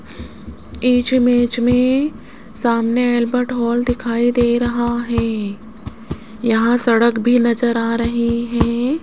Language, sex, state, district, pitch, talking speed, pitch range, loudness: Hindi, female, Rajasthan, Jaipur, 240 Hz, 115 wpm, 235-245 Hz, -17 LUFS